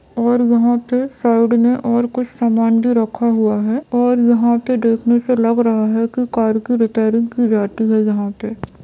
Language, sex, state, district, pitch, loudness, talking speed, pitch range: Hindi, female, Bihar, Saran, 235 Hz, -16 LUFS, 195 wpm, 225-240 Hz